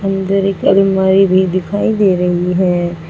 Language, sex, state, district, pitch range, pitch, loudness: Hindi, female, Uttar Pradesh, Saharanpur, 180-195 Hz, 190 Hz, -13 LUFS